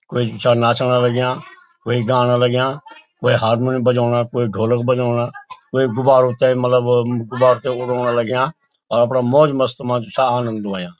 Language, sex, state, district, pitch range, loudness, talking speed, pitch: Garhwali, male, Uttarakhand, Uttarkashi, 120-130 Hz, -17 LUFS, 165 wpm, 125 Hz